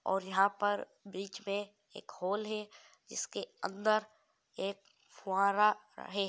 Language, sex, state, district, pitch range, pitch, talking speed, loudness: Hindi, male, Andhra Pradesh, Guntur, 195-210 Hz, 200 Hz, 125 wpm, -35 LUFS